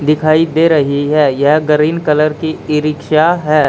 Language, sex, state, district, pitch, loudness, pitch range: Hindi, male, Haryana, Charkhi Dadri, 155 Hz, -12 LUFS, 150-155 Hz